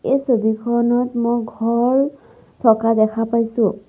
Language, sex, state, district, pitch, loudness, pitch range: Assamese, female, Assam, Sonitpur, 235 Hz, -18 LUFS, 225-245 Hz